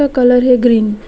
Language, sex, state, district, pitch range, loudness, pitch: Hindi, female, West Bengal, Alipurduar, 230-250 Hz, -11 LUFS, 245 Hz